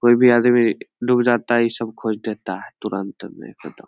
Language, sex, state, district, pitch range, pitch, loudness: Hindi, male, Bihar, Samastipur, 110-120 Hz, 115 Hz, -19 LUFS